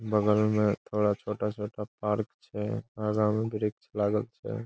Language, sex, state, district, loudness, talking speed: Maithili, male, Bihar, Saharsa, -30 LUFS, 140 wpm